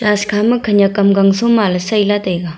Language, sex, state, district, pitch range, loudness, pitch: Wancho, female, Arunachal Pradesh, Longding, 195-210 Hz, -13 LUFS, 205 Hz